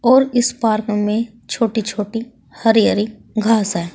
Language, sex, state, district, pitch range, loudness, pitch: Hindi, female, Uttar Pradesh, Saharanpur, 210-230 Hz, -18 LUFS, 225 Hz